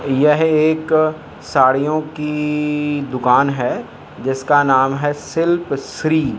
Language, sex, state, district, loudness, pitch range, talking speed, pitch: Hindi, male, Maharashtra, Mumbai Suburban, -17 LUFS, 135-155 Hz, 105 wpm, 150 Hz